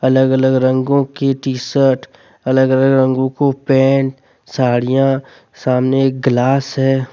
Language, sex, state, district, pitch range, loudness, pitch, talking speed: Hindi, male, Jharkhand, Deoghar, 130-135 Hz, -15 LUFS, 130 Hz, 125 wpm